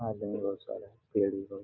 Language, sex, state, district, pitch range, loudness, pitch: Hindi, male, Jharkhand, Jamtara, 100-105 Hz, -34 LUFS, 100 Hz